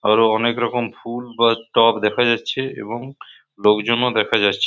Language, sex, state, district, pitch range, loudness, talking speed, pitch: Bengali, male, West Bengal, Purulia, 110-120 Hz, -18 LUFS, 180 wpm, 115 Hz